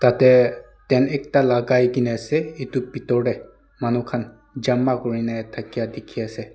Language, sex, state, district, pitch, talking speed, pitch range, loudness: Nagamese, male, Nagaland, Dimapur, 125 Hz, 135 wpm, 115-130 Hz, -21 LUFS